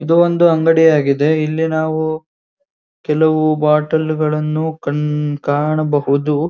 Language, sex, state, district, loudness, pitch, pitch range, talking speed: Kannada, male, Karnataka, Dharwad, -15 LUFS, 155 Hz, 150-160 Hz, 90 wpm